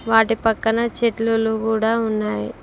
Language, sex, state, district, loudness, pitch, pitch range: Telugu, female, Telangana, Mahabubabad, -20 LUFS, 225 Hz, 220-225 Hz